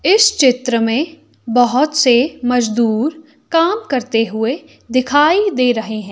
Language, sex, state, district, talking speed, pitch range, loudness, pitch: Hindi, female, Himachal Pradesh, Shimla, 125 wpm, 235-310 Hz, -15 LUFS, 255 Hz